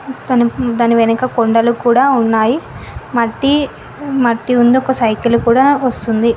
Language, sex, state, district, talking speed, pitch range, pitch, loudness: Telugu, female, Telangana, Mahabubabad, 120 wpm, 230-260 Hz, 240 Hz, -13 LUFS